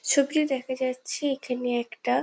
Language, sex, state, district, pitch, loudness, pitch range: Bengali, female, West Bengal, Jhargram, 260 Hz, -27 LUFS, 250-280 Hz